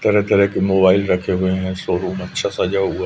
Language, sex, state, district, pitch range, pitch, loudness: Hindi, female, Madhya Pradesh, Umaria, 90-95 Hz, 95 Hz, -18 LUFS